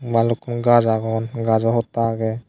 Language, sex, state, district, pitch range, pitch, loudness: Chakma, male, Tripura, Dhalai, 115-120 Hz, 115 Hz, -19 LUFS